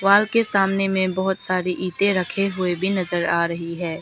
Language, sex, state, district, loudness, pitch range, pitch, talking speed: Hindi, female, Arunachal Pradesh, Lower Dibang Valley, -20 LUFS, 175-195 Hz, 185 Hz, 210 wpm